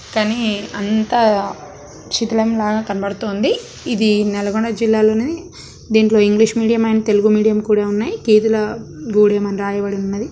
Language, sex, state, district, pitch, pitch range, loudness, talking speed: Telugu, female, Telangana, Nalgonda, 215 Hz, 205-225 Hz, -16 LUFS, 120 wpm